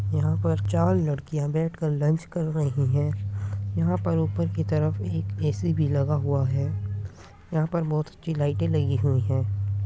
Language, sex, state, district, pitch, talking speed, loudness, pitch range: Hindi, male, Uttar Pradesh, Muzaffarnagar, 120 Hz, 175 wpm, -26 LUFS, 95-150 Hz